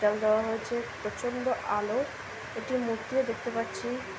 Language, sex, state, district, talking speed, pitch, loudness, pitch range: Bengali, female, West Bengal, Jhargram, 130 wpm, 230 Hz, -31 LUFS, 220-245 Hz